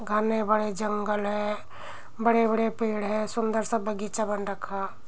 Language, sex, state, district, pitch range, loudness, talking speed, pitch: Hindi, female, Uttar Pradesh, Muzaffarnagar, 210-220 Hz, -27 LUFS, 140 wpm, 215 Hz